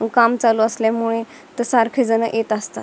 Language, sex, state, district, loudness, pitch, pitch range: Marathi, female, Maharashtra, Dhule, -18 LUFS, 230 Hz, 225-240 Hz